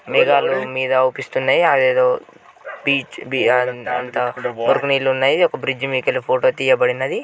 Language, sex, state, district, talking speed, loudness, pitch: Telugu, male, Telangana, Karimnagar, 150 wpm, -18 LUFS, 140 Hz